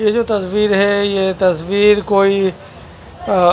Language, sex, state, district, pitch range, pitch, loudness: Hindi, male, Punjab, Fazilka, 180-205 Hz, 195 Hz, -15 LUFS